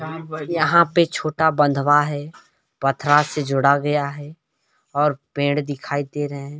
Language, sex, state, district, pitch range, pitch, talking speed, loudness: Hindi, male, Chhattisgarh, Balrampur, 145-155 Hz, 145 Hz, 165 wpm, -20 LUFS